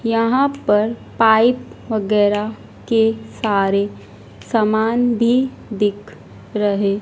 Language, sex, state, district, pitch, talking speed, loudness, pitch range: Hindi, female, Madhya Pradesh, Dhar, 215 Hz, 85 wpm, -18 LUFS, 205-230 Hz